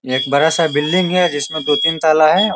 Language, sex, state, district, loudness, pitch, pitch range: Hindi, male, Bihar, Sitamarhi, -15 LUFS, 155 Hz, 145-165 Hz